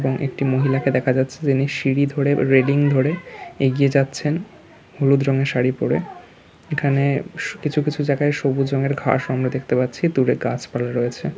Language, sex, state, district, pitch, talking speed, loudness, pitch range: Bengali, male, West Bengal, Kolkata, 135 Hz, 160 wpm, -20 LUFS, 130-140 Hz